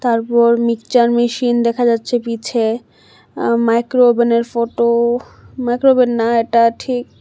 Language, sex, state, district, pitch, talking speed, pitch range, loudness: Bengali, female, Tripura, West Tripura, 235 Hz, 100 wpm, 235-245 Hz, -15 LUFS